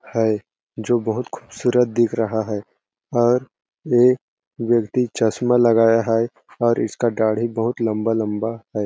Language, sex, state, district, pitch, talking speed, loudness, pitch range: Hindi, male, Chhattisgarh, Balrampur, 115 Hz, 135 wpm, -20 LUFS, 110-120 Hz